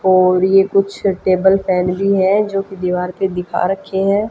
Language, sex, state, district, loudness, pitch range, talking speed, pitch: Hindi, female, Haryana, Jhajjar, -15 LUFS, 185-195 Hz, 195 wpm, 190 Hz